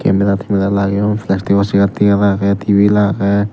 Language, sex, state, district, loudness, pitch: Chakma, male, Tripura, Dhalai, -14 LUFS, 100 Hz